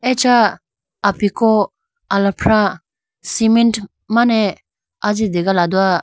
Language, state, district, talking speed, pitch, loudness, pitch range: Idu Mishmi, Arunachal Pradesh, Lower Dibang Valley, 80 wpm, 210 Hz, -16 LUFS, 195-230 Hz